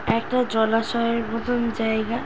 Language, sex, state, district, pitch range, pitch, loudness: Bengali, female, West Bengal, Dakshin Dinajpur, 225-235 Hz, 230 Hz, -23 LUFS